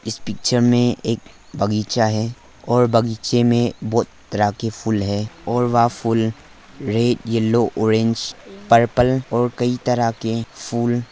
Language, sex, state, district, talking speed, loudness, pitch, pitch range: Hindi, male, Arunachal Pradesh, Lower Dibang Valley, 140 wpm, -19 LUFS, 115 Hz, 110-120 Hz